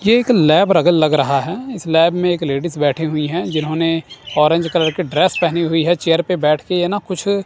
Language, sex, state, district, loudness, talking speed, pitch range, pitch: Hindi, male, Punjab, Kapurthala, -16 LUFS, 240 wpm, 155-180 Hz, 165 Hz